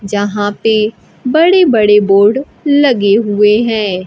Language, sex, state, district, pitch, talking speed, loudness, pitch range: Hindi, female, Bihar, Kaimur, 215 Hz, 120 wpm, -11 LUFS, 205-250 Hz